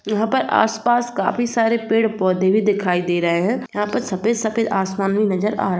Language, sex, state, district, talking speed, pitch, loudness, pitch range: Hindi, female, Bihar, East Champaran, 205 wpm, 210 Hz, -19 LUFS, 190-225 Hz